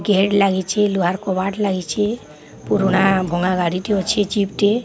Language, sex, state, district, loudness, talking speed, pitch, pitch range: Odia, female, Odisha, Sambalpur, -18 LUFS, 125 wpm, 195 Hz, 185-205 Hz